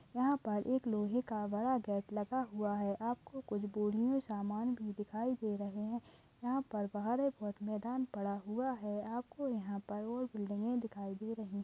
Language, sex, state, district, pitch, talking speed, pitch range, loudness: Hindi, female, Rajasthan, Nagaur, 215 Hz, 175 wpm, 205-245 Hz, -39 LUFS